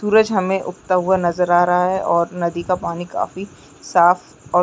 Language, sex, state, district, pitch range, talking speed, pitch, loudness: Chhattisgarhi, female, Chhattisgarh, Jashpur, 175-190 Hz, 195 wpm, 180 Hz, -18 LUFS